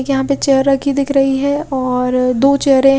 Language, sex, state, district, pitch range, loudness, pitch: Hindi, female, Chhattisgarh, Raipur, 265-280 Hz, -14 LUFS, 270 Hz